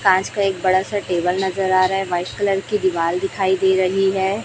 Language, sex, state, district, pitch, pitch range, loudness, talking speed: Hindi, female, Chhattisgarh, Raipur, 190 Hz, 185-195 Hz, -19 LUFS, 240 wpm